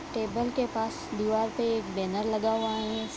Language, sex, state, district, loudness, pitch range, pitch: Hindi, female, Bihar, Vaishali, -30 LUFS, 220-230 Hz, 220 Hz